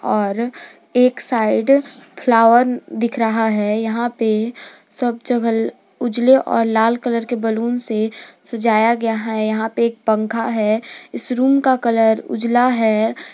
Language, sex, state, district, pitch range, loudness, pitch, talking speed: Hindi, female, Jharkhand, Garhwa, 220-245 Hz, -17 LUFS, 230 Hz, 145 wpm